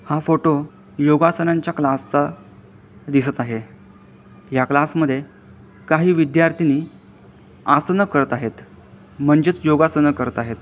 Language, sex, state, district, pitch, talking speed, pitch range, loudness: Marathi, male, Maharashtra, Pune, 145 Hz, 105 wpm, 130-160 Hz, -18 LUFS